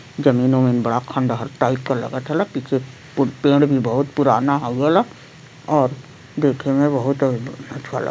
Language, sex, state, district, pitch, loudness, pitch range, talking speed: Bhojpuri, male, Uttar Pradesh, Varanasi, 135 Hz, -19 LUFS, 130-145 Hz, 155 wpm